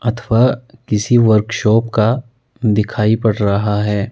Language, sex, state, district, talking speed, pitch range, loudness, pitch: Hindi, male, Himachal Pradesh, Shimla, 100 wpm, 105-120 Hz, -15 LUFS, 110 Hz